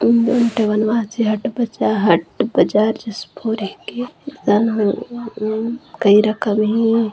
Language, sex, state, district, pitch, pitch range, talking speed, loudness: Hindi, female, Chhattisgarh, Jashpur, 220 Hz, 210-235 Hz, 100 wpm, -18 LUFS